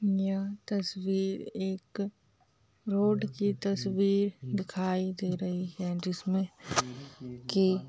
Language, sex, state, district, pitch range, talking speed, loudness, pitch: Hindi, female, Bihar, Muzaffarpur, 180-200 Hz, 90 wpm, -32 LUFS, 190 Hz